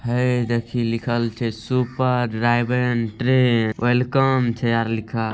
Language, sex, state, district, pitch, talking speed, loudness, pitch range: Angika, male, Bihar, Begusarai, 120 Hz, 100 wpm, -21 LUFS, 115-125 Hz